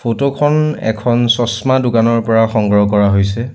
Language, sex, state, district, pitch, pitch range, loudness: Assamese, male, Assam, Sonitpur, 115 Hz, 110-130 Hz, -13 LUFS